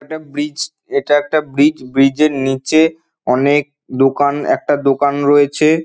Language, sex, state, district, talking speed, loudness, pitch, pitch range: Bengali, male, West Bengal, Dakshin Dinajpur, 145 wpm, -15 LUFS, 145 Hz, 140-155 Hz